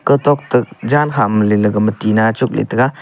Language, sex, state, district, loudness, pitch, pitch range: Wancho, male, Arunachal Pradesh, Longding, -15 LUFS, 125 Hz, 105-140 Hz